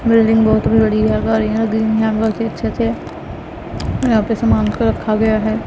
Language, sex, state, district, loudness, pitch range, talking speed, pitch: Hindi, female, Punjab, Pathankot, -16 LUFS, 215-225 Hz, 140 wpm, 220 Hz